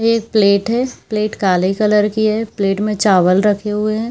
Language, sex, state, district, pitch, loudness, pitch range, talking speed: Hindi, female, Bihar, Purnia, 210 Hz, -15 LUFS, 200-220 Hz, 205 wpm